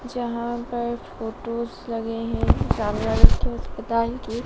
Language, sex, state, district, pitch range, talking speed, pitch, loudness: Hindi, male, Madhya Pradesh, Dhar, 230-240 Hz, 110 wpm, 235 Hz, -25 LUFS